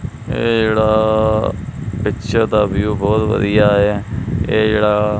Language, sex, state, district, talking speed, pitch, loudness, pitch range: Punjabi, male, Punjab, Kapurthala, 90 wpm, 110 Hz, -16 LUFS, 105-110 Hz